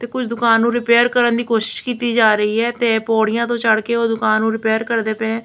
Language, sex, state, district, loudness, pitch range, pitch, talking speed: Punjabi, female, Punjab, Kapurthala, -17 LUFS, 220-235 Hz, 230 Hz, 240 wpm